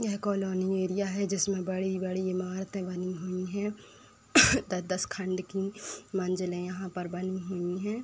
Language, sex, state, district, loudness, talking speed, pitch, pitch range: Hindi, female, Uttar Pradesh, Etah, -30 LUFS, 140 wpm, 185 Hz, 185-195 Hz